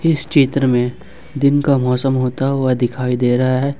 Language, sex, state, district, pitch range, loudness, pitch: Hindi, male, Jharkhand, Ranchi, 125-140 Hz, -16 LUFS, 130 Hz